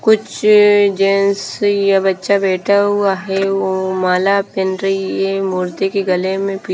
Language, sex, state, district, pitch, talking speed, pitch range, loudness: Hindi, female, Haryana, Rohtak, 195 Hz, 150 wpm, 190-200 Hz, -15 LUFS